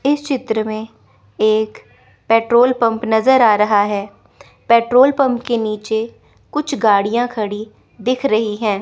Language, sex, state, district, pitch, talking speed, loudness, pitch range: Hindi, female, Chandigarh, Chandigarh, 225 Hz, 135 wpm, -16 LUFS, 215-245 Hz